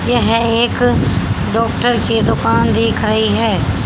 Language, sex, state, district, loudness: Hindi, female, Haryana, Jhajjar, -14 LUFS